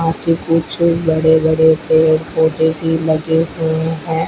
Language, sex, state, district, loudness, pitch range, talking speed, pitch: Hindi, female, Rajasthan, Bikaner, -15 LUFS, 160-165 Hz, 140 wpm, 160 Hz